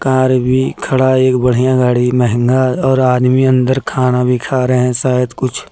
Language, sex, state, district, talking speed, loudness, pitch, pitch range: Hindi, male, Jharkhand, Deoghar, 170 wpm, -13 LUFS, 130 Hz, 125-130 Hz